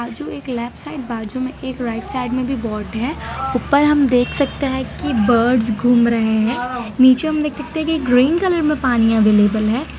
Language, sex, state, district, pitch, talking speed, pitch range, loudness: Hindi, female, Gujarat, Valsad, 250 Hz, 210 wpm, 235-280 Hz, -17 LUFS